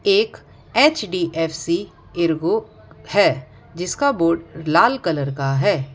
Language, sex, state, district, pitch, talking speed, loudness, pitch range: Hindi, female, Gujarat, Valsad, 170 Hz, 100 wpm, -20 LUFS, 155-210 Hz